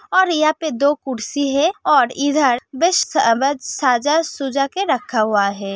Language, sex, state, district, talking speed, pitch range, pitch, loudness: Hindi, female, Uttar Pradesh, Hamirpur, 165 wpm, 250-310 Hz, 280 Hz, -17 LUFS